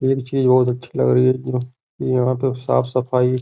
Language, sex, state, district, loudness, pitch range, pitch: Hindi, male, Uttar Pradesh, Hamirpur, -19 LUFS, 125-130 Hz, 125 Hz